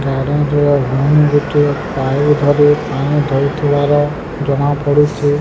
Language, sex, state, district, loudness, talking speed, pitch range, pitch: Odia, male, Odisha, Sambalpur, -14 LUFS, 65 wpm, 140-145 Hz, 145 Hz